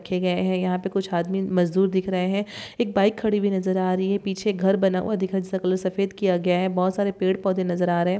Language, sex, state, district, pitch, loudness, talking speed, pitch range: Hindi, female, West Bengal, Paschim Medinipur, 190 Hz, -23 LUFS, 295 wpm, 185-195 Hz